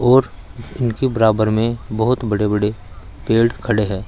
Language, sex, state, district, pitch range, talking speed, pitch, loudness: Hindi, male, Uttar Pradesh, Saharanpur, 105-115 Hz, 145 wpm, 110 Hz, -18 LUFS